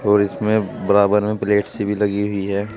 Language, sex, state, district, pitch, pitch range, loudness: Hindi, male, Uttar Pradesh, Saharanpur, 105 Hz, 100-105 Hz, -19 LUFS